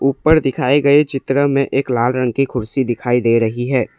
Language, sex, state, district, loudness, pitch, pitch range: Hindi, male, Assam, Kamrup Metropolitan, -16 LUFS, 135 Hz, 120-140 Hz